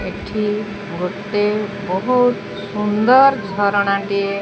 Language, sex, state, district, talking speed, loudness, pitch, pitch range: Odia, female, Odisha, Khordha, 95 wpm, -18 LUFS, 200 Hz, 200-210 Hz